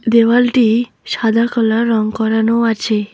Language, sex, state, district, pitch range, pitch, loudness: Bengali, female, West Bengal, Alipurduar, 220-235 Hz, 230 Hz, -14 LUFS